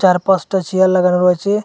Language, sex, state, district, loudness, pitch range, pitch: Bengali, male, Assam, Hailakandi, -14 LUFS, 180-190 Hz, 185 Hz